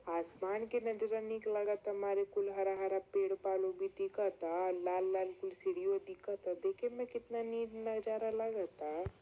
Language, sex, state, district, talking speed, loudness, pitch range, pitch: Bhojpuri, female, Uttar Pradesh, Varanasi, 135 wpm, -38 LUFS, 190-230 Hz, 205 Hz